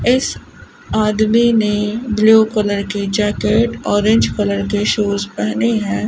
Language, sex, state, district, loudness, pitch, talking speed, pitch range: Hindi, female, Rajasthan, Bikaner, -16 LUFS, 210 Hz, 130 wpm, 200-220 Hz